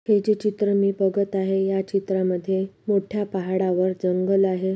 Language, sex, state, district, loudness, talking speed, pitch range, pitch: Marathi, female, Maharashtra, Pune, -23 LUFS, 150 wpm, 190-200 Hz, 195 Hz